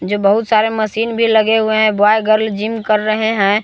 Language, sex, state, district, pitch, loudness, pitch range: Hindi, male, Jharkhand, Palamu, 215 Hz, -14 LUFS, 210-220 Hz